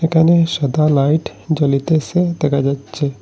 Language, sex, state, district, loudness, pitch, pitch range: Bengali, male, Assam, Hailakandi, -16 LUFS, 155 Hz, 140-165 Hz